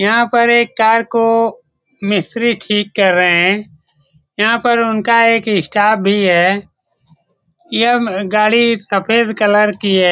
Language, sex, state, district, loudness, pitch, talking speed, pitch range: Hindi, male, Bihar, Saran, -13 LUFS, 210 Hz, 135 wpm, 190-230 Hz